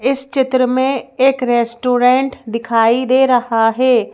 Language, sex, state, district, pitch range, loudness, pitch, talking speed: Hindi, female, Madhya Pradesh, Bhopal, 235-265 Hz, -14 LUFS, 255 Hz, 130 wpm